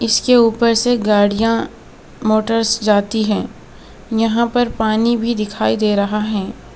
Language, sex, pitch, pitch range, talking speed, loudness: Hindi, female, 220 Hz, 210-235 Hz, 135 wpm, -16 LUFS